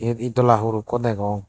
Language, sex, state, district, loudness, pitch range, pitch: Chakma, male, Tripura, Dhalai, -21 LUFS, 105-120 Hz, 115 Hz